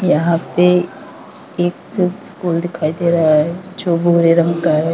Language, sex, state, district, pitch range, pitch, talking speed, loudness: Hindi, female, Uttar Pradesh, Lalitpur, 165-180 Hz, 170 Hz, 160 wpm, -16 LUFS